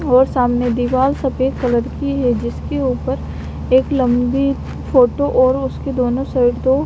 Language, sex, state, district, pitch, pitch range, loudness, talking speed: Hindi, female, Haryana, Charkhi Dadri, 255 Hz, 245-265 Hz, -17 LUFS, 150 wpm